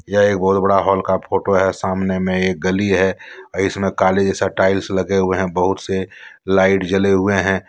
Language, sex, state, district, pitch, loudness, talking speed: Hindi, male, Jharkhand, Deoghar, 95 Hz, -17 LUFS, 205 wpm